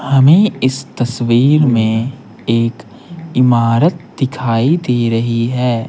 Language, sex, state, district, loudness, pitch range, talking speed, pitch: Hindi, male, Bihar, Patna, -14 LUFS, 115-135 Hz, 90 wpm, 125 Hz